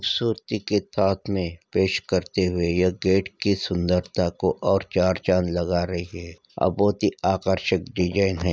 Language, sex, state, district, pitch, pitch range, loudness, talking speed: Hindi, female, Maharashtra, Nagpur, 95 Hz, 90-95 Hz, -23 LUFS, 170 wpm